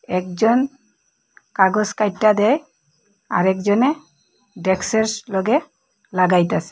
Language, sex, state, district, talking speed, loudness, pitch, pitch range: Bengali, female, Assam, Hailakandi, 80 wpm, -19 LUFS, 205 Hz, 185-225 Hz